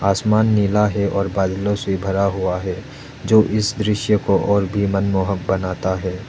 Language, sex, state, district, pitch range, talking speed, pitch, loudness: Hindi, male, Arunachal Pradesh, Lower Dibang Valley, 95-105 Hz, 170 wpm, 100 Hz, -19 LUFS